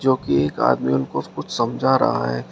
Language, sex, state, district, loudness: Hindi, male, Uttar Pradesh, Shamli, -20 LUFS